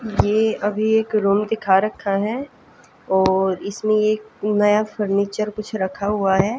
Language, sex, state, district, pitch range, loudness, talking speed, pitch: Hindi, female, Haryana, Jhajjar, 200-215 Hz, -20 LUFS, 145 wpm, 210 Hz